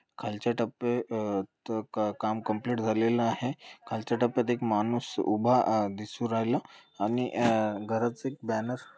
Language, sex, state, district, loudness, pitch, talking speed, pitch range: Marathi, male, Maharashtra, Dhule, -30 LUFS, 115 Hz, 145 wpm, 110-120 Hz